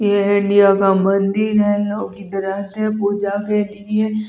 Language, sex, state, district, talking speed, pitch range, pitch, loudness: Hindi, female, Delhi, New Delhi, 155 wpm, 195-210 Hz, 205 Hz, -17 LUFS